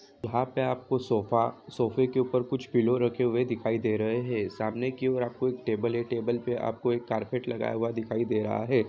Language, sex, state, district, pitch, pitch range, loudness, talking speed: Hindi, female, Jharkhand, Jamtara, 120 Hz, 115-125 Hz, -29 LUFS, 225 wpm